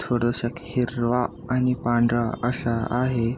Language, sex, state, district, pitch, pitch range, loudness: Marathi, male, Maharashtra, Aurangabad, 120 Hz, 120-125 Hz, -24 LUFS